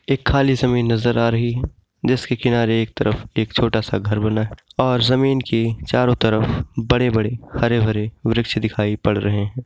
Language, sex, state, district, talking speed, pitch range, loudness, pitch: Hindi, male, Uttar Pradesh, Ghazipur, 185 wpm, 110-125 Hz, -19 LUFS, 115 Hz